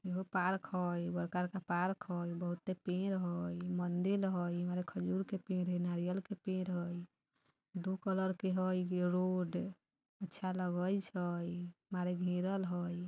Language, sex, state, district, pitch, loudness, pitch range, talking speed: Bajjika, female, Bihar, Vaishali, 180 Hz, -38 LUFS, 175-190 Hz, 145 wpm